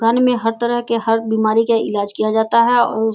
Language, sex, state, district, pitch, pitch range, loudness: Hindi, female, Bihar, Sitamarhi, 225 Hz, 220-235 Hz, -16 LUFS